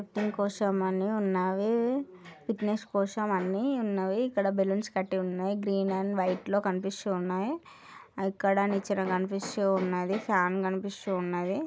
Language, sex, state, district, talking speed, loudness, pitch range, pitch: Telugu, female, Andhra Pradesh, Guntur, 125 wpm, -30 LUFS, 190-205 Hz, 195 Hz